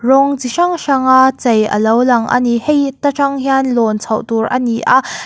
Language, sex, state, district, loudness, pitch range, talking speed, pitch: Mizo, female, Mizoram, Aizawl, -13 LUFS, 230-275 Hz, 205 wpm, 255 Hz